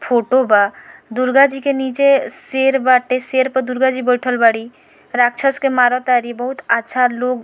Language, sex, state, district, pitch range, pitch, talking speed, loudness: Bhojpuri, female, Bihar, Muzaffarpur, 245-265 Hz, 255 Hz, 175 wpm, -15 LUFS